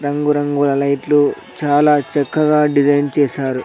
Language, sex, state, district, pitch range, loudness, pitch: Telugu, male, Andhra Pradesh, Sri Satya Sai, 140-150 Hz, -15 LUFS, 145 Hz